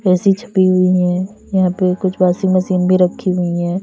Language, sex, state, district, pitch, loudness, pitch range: Hindi, female, Uttar Pradesh, Lalitpur, 185 Hz, -15 LUFS, 180-190 Hz